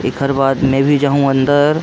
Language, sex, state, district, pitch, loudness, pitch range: Chhattisgarhi, male, Chhattisgarh, Rajnandgaon, 140 Hz, -14 LUFS, 135-145 Hz